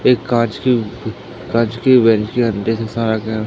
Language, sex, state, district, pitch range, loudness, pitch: Hindi, male, Madhya Pradesh, Katni, 110-120 Hz, -16 LUFS, 115 Hz